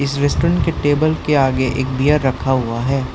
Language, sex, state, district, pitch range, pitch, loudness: Hindi, male, Arunachal Pradesh, Lower Dibang Valley, 130-145 Hz, 135 Hz, -17 LUFS